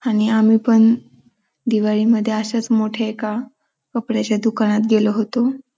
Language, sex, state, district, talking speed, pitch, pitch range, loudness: Marathi, female, Maharashtra, Pune, 115 wpm, 225 Hz, 215-235 Hz, -18 LUFS